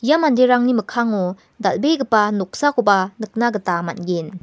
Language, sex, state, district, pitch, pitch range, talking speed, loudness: Garo, female, Meghalaya, West Garo Hills, 215 Hz, 185-250 Hz, 110 wpm, -18 LUFS